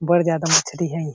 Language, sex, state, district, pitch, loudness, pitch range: Chhattisgarhi, male, Chhattisgarh, Sarguja, 165 Hz, -19 LUFS, 160-170 Hz